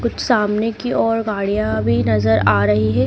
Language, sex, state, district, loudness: Hindi, female, Madhya Pradesh, Dhar, -17 LUFS